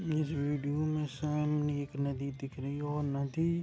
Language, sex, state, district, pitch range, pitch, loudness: Hindi, male, Uttar Pradesh, Deoria, 140-150 Hz, 145 Hz, -34 LUFS